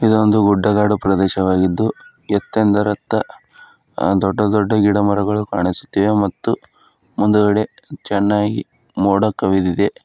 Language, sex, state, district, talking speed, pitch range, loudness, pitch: Kannada, male, Karnataka, Bidar, 90 wpm, 100-105 Hz, -17 LUFS, 105 Hz